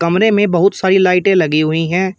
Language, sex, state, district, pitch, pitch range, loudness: Hindi, male, Uttar Pradesh, Shamli, 185 Hz, 170-195 Hz, -13 LUFS